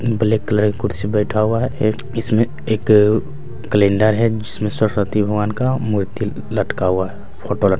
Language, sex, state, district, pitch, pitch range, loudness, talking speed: Hindi, male, Bihar, Bhagalpur, 110 Hz, 105-115 Hz, -18 LUFS, 175 wpm